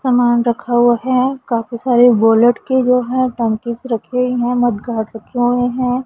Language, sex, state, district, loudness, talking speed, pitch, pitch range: Hindi, female, Punjab, Pathankot, -15 LUFS, 190 wpm, 245 Hz, 235-250 Hz